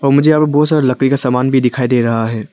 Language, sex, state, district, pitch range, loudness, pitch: Hindi, male, Arunachal Pradesh, Lower Dibang Valley, 125-140 Hz, -13 LUFS, 130 Hz